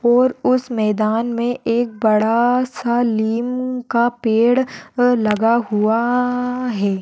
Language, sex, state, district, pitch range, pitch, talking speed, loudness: Hindi, female, Maharashtra, Solapur, 220-245 Hz, 235 Hz, 120 wpm, -18 LUFS